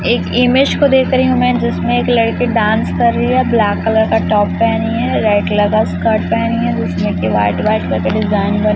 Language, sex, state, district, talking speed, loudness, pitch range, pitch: Hindi, female, Chhattisgarh, Raipur, 220 wpm, -14 LUFS, 205-230 Hz, 215 Hz